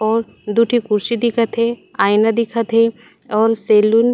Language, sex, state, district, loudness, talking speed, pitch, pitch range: Chhattisgarhi, female, Chhattisgarh, Raigarh, -16 LUFS, 175 wpm, 230 Hz, 215-235 Hz